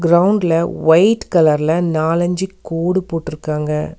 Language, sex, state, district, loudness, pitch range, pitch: Tamil, female, Tamil Nadu, Nilgiris, -16 LUFS, 160-175 Hz, 165 Hz